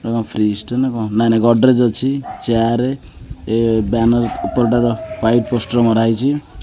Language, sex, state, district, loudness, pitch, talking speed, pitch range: Odia, male, Odisha, Khordha, -16 LUFS, 115 Hz, 155 wpm, 115-125 Hz